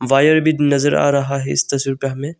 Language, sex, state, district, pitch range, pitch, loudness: Hindi, male, Arunachal Pradesh, Longding, 135-145 Hz, 140 Hz, -16 LUFS